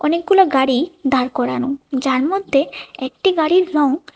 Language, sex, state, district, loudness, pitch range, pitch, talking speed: Bengali, female, Tripura, West Tripura, -17 LUFS, 265-360 Hz, 290 Hz, 130 wpm